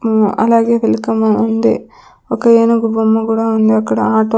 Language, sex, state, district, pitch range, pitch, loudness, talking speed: Telugu, female, Andhra Pradesh, Sri Satya Sai, 220-230 Hz, 225 Hz, -13 LUFS, 165 wpm